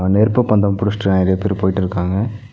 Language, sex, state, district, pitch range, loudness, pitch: Tamil, male, Tamil Nadu, Nilgiris, 95-105 Hz, -17 LUFS, 100 Hz